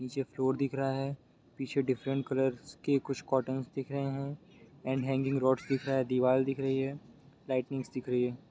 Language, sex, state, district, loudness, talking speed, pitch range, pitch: Hindi, male, Bihar, Sitamarhi, -33 LUFS, 195 wpm, 130-135 Hz, 135 Hz